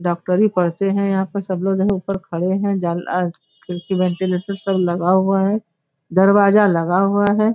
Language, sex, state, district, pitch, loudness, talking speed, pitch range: Hindi, female, Bihar, Bhagalpur, 190 Hz, -18 LUFS, 185 wpm, 180-200 Hz